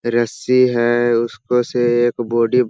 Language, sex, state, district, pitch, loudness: Hindi, male, Bihar, Jahanabad, 120 Hz, -17 LUFS